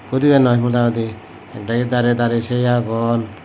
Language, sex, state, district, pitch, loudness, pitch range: Chakma, male, Tripura, Dhalai, 120 Hz, -17 LUFS, 115-125 Hz